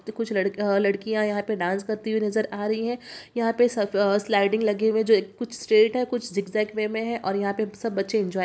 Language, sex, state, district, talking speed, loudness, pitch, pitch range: Hindi, female, Bihar, Jamui, 255 wpm, -24 LUFS, 215 Hz, 200-220 Hz